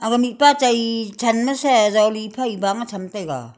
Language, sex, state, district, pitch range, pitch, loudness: Wancho, female, Arunachal Pradesh, Longding, 205-245 Hz, 230 Hz, -19 LUFS